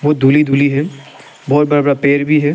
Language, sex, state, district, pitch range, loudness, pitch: Hindi, male, Arunachal Pradesh, Lower Dibang Valley, 140-150 Hz, -13 LUFS, 145 Hz